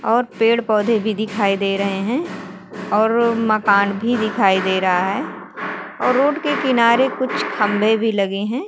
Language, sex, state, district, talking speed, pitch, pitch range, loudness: Hindi, female, Uttar Pradesh, Muzaffarnagar, 160 wpm, 220 Hz, 200-235 Hz, -18 LUFS